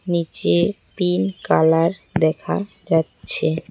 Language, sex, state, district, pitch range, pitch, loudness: Bengali, female, West Bengal, Cooch Behar, 155-170 Hz, 160 Hz, -20 LUFS